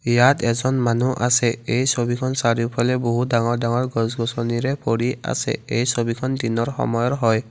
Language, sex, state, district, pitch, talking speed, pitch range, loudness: Assamese, male, Assam, Kamrup Metropolitan, 120 Hz, 145 wpm, 115-125 Hz, -21 LUFS